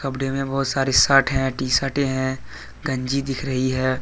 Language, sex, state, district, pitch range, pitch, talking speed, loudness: Hindi, male, Jharkhand, Deoghar, 130-135 Hz, 135 Hz, 195 wpm, -21 LUFS